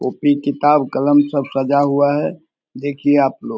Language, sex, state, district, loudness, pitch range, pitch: Hindi, male, Bihar, Samastipur, -16 LUFS, 140-145 Hz, 145 Hz